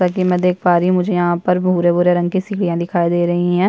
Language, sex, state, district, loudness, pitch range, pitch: Hindi, female, Chhattisgarh, Bastar, -16 LUFS, 175-180 Hz, 180 Hz